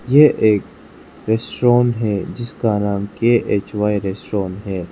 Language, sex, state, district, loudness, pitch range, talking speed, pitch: Hindi, male, Arunachal Pradesh, Lower Dibang Valley, -18 LUFS, 100-120 Hz, 110 wpm, 105 Hz